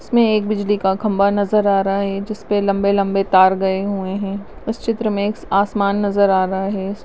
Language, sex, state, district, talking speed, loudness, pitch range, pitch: Hindi, female, Rajasthan, Nagaur, 205 wpm, -18 LUFS, 195-210 Hz, 200 Hz